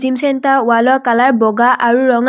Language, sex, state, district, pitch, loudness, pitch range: Assamese, female, Assam, Kamrup Metropolitan, 255 Hz, -12 LUFS, 235-260 Hz